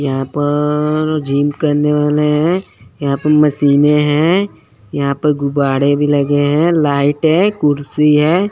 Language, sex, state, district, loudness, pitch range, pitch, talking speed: Hindi, female, Chandigarh, Chandigarh, -14 LUFS, 140-150 Hz, 150 Hz, 140 wpm